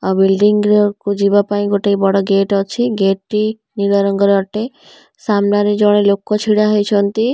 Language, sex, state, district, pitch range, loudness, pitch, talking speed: Odia, female, Odisha, Nuapada, 200-210 Hz, -14 LUFS, 205 Hz, 155 wpm